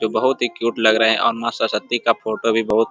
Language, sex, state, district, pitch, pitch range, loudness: Hindi, male, Bihar, Jamui, 115 Hz, 110-115 Hz, -18 LUFS